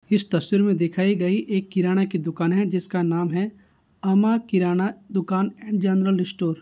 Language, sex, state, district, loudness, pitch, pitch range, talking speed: Hindi, male, Bihar, Gaya, -22 LUFS, 190 Hz, 180-200 Hz, 180 wpm